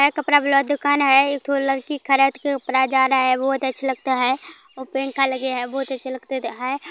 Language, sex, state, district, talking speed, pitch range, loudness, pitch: Maithili, female, Bihar, Kishanganj, 225 wpm, 260-280 Hz, -20 LUFS, 270 Hz